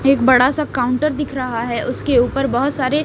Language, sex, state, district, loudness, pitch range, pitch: Hindi, female, Punjab, Pathankot, -17 LUFS, 250-285 Hz, 260 Hz